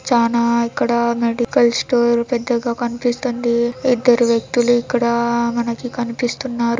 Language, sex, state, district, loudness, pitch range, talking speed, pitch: Telugu, female, Andhra Pradesh, Anantapur, -18 LUFS, 235-245 Hz, 95 wpm, 235 Hz